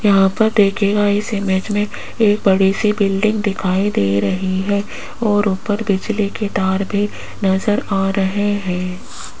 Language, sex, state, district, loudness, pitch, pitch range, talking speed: Hindi, female, Rajasthan, Jaipur, -17 LUFS, 200 Hz, 190-210 Hz, 155 wpm